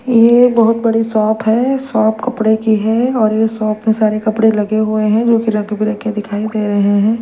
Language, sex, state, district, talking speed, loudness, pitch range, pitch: Hindi, female, Punjab, Kapurthala, 225 wpm, -14 LUFS, 215-230 Hz, 220 Hz